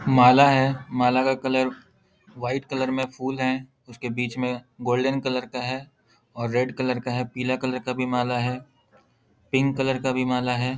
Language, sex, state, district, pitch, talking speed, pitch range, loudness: Hindi, male, Bihar, Lakhisarai, 125 Hz, 195 wpm, 125-130 Hz, -24 LUFS